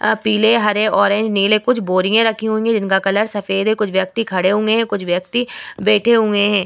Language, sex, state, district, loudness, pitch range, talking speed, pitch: Hindi, female, Bihar, Vaishali, -16 LUFS, 200-220 Hz, 215 wpm, 210 Hz